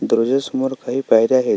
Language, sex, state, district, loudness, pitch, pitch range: Marathi, male, Maharashtra, Sindhudurg, -18 LUFS, 130 Hz, 120-135 Hz